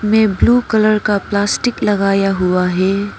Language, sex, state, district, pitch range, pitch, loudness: Hindi, female, Arunachal Pradesh, Papum Pare, 195-215 Hz, 205 Hz, -14 LUFS